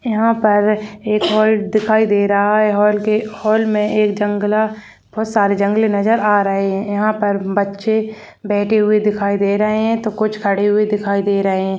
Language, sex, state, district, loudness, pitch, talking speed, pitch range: Hindi, female, Chhattisgarh, Rajnandgaon, -16 LUFS, 210 Hz, 195 wpm, 205-215 Hz